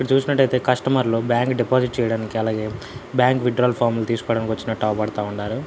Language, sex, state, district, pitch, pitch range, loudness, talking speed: Telugu, male, Andhra Pradesh, Anantapur, 120 Hz, 110-125 Hz, -21 LUFS, 180 wpm